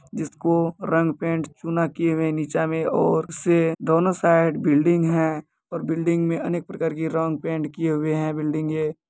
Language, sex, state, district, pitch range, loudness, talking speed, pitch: Hindi, male, Bihar, Muzaffarpur, 155-165 Hz, -22 LUFS, 180 wpm, 160 Hz